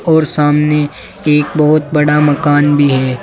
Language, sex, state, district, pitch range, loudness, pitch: Hindi, male, Uttar Pradesh, Saharanpur, 145-150 Hz, -12 LUFS, 150 Hz